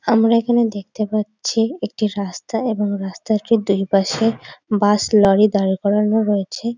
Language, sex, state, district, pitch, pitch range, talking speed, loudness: Bengali, female, West Bengal, Dakshin Dinajpur, 210 Hz, 200-225 Hz, 125 wpm, -18 LUFS